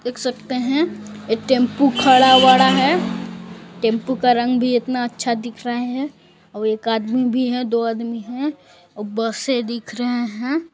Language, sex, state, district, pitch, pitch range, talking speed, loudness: Hindi, female, Chhattisgarh, Balrampur, 240 Hz, 225-255 Hz, 170 wpm, -18 LUFS